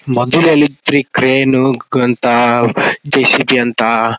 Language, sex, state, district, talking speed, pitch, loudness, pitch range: Kannada, male, Karnataka, Gulbarga, 115 wpm, 130 Hz, -12 LUFS, 120-135 Hz